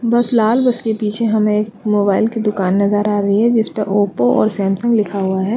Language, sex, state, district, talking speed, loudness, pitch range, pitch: Hindi, female, Chhattisgarh, Bastar, 225 wpm, -16 LUFS, 200-225 Hz, 210 Hz